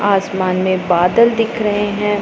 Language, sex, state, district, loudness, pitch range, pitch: Hindi, female, Punjab, Pathankot, -15 LUFS, 185-210 Hz, 205 Hz